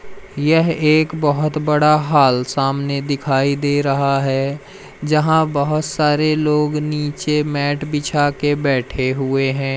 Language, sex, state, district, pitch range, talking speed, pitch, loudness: Hindi, male, Madhya Pradesh, Umaria, 140-150 Hz, 130 wpm, 145 Hz, -17 LUFS